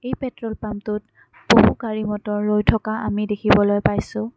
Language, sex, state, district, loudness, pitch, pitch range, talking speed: Assamese, female, Assam, Kamrup Metropolitan, -20 LUFS, 210 Hz, 210-220 Hz, 135 wpm